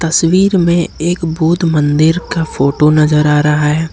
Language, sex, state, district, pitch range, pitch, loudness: Hindi, male, Jharkhand, Ranchi, 150-170 Hz, 160 Hz, -12 LUFS